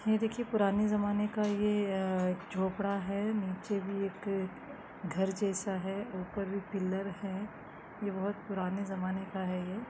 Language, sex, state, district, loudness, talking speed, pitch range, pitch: Kumaoni, female, Uttarakhand, Uttarkashi, -34 LUFS, 150 wpm, 190-205 Hz, 195 Hz